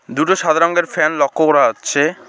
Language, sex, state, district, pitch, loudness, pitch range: Bengali, male, West Bengal, Alipurduar, 160 Hz, -15 LUFS, 155-175 Hz